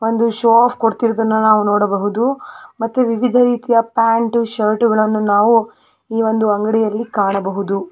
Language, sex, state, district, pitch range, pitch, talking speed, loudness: Kannada, female, Karnataka, Belgaum, 210-230 Hz, 225 Hz, 115 wpm, -15 LUFS